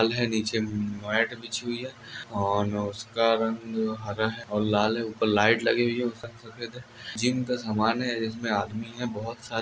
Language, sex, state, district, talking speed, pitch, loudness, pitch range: Hindi, male, Andhra Pradesh, Anantapur, 150 wpm, 115 Hz, -27 LUFS, 110-120 Hz